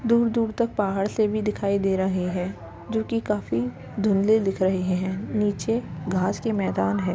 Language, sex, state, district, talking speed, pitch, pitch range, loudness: Hindi, female, Uttar Pradesh, Jalaun, 175 wpm, 200 Hz, 185-220 Hz, -25 LUFS